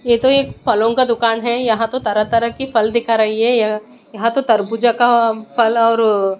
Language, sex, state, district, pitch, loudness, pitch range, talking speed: Hindi, female, Odisha, Malkangiri, 230 Hz, -15 LUFS, 220-240 Hz, 215 wpm